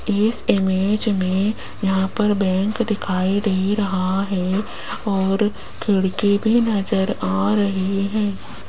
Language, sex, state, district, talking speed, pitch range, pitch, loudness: Hindi, female, Rajasthan, Jaipur, 115 wpm, 190-210 Hz, 200 Hz, -20 LUFS